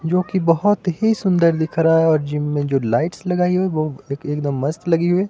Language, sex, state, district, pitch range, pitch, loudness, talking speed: Hindi, male, Himachal Pradesh, Shimla, 150-180 Hz, 165 Hz, -19 LUFS, 240 wpm